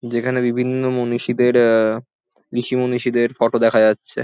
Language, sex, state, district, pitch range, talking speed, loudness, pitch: Bengali, male, West Bengal, Jhargram, 115-125 Hz, 125 wpm, -18 LUFS, 120 Hz